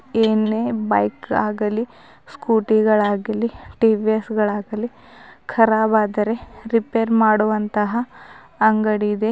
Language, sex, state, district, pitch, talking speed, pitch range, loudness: Kannada, female, Karnataka, Bidar, 220 Hz, 85 wpm, 210-225 Hz, -19 LUFS